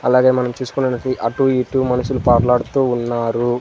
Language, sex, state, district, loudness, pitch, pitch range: Telugu, male, Andhra Pradesh, Sri Satya Sai, -17 LUFS, 125 Hz, 120-130 Hz